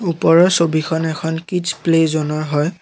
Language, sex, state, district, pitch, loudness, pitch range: Assamese, male, Assam, Kamrup Metropolitan, 165 Hz, -16 LUFS, 155-170 Hz